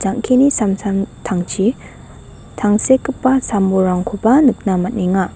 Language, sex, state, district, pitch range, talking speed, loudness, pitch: Garo, female, Meghalaya, West Garo Hills, 190-250 Hz, 80 wpm, -16 LUFS, 205 Hz